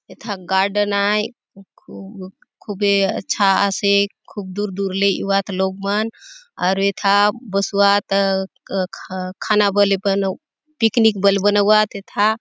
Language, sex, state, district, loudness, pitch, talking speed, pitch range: Halbi, female, Chhattisgarh, Bastar, -18 LUFS, 200 Hz, 120 wpm, 195-210 Hz